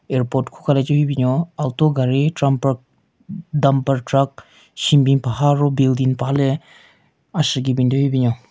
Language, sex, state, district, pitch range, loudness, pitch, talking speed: Rengma, male, Nagaland, Kohima, 130-145 Hz, -18 LUFS, 135 Hz, 155 wpm